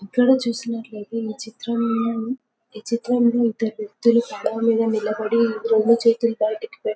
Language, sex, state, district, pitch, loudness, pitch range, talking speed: Telugu, female, Telangana, Karimnagar, 230 Hz, -21 LUFS, 220-235 Hz, 120 wpm